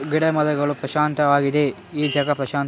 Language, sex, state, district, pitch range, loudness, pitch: Kannada, male, Karnataka, Dharwad, 140-150 Hz, -20 LUFS, 145 Hz